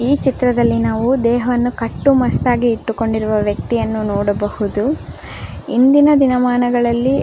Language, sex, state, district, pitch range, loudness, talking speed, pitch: Kannada, female, Karnataka, Belgaum, 225-255 Hz, -16 LUFS, 110 wpm, 240 Hz